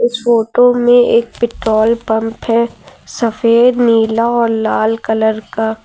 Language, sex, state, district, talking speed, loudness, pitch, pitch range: Hindi, female, Uttar Pradesh, Lucknow, 135 wpm, -13 LUFS, 230 Hz, 220-235 Hz